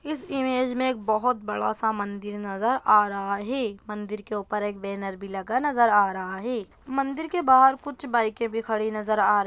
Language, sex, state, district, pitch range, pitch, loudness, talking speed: Hindi, female, Bihar, Gaya, 205-255 Hz, 220 Hz, -25 LUFS, 205 wpm